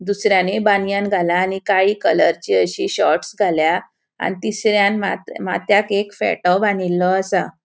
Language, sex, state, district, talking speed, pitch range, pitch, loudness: Konkani, female, Goa, North and South Goa, 135 wpm, 190-205 Hz, 200 Hz, -18 LUFS